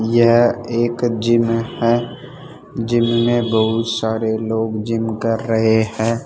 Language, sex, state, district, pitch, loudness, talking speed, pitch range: Hindi, male, Rajasthan, Jaipur, 115 Hz, -17 LUFS, 125 wpm, 110-120 Hz